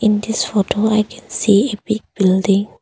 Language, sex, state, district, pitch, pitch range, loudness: English, female, Arunachal Pradesh, Longding, 215 Hz, 200-220 Hz, -17 LUFS